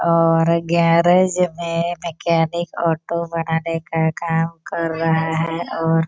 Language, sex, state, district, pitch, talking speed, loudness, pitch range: Hindi, female, Bihar, Gopalganj, 165 Hz, 130 wpm, -19 LUFS, 165-170 Hz